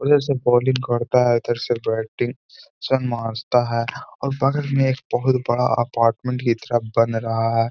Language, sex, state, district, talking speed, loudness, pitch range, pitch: Hindi, male, Bihar, Gaya, 170 wpm, -21 LUFS, 115-130 Hz, 120 Hz